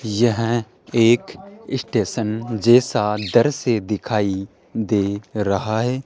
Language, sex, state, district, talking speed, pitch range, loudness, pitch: Hindi, male, Rajasthan, Jaipur, 100 wpm, 105-120 Hz, -20 LUFS, 115 Hz